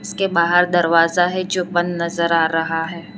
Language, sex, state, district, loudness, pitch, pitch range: Hindi, female, Gujarat, Valsad, -17 LUFS, 170 Hz, 165-175 Hz